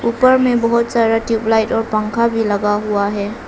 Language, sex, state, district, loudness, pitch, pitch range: Hindi, female, Arunachal Pradesh, Lower Dibang Valley, -16 LUFS, 225 Hz, 215-235 Hz